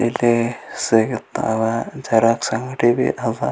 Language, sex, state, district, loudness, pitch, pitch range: Kannada, male, Karnataka, Gulbarga, -19 LUFS, 115 Hz, 115-120 Hz